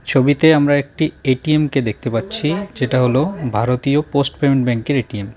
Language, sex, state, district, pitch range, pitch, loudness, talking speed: Bengali, male, West Bengal, Cooch Behar, 125-150 Hz, 140 Hz, -17 LUFS, 165 wpm